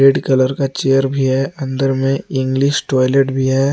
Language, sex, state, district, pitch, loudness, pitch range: Hindi, male, Jharkhand, Garhwa, 135 Hz, -16 LUFS, 130-135 Hz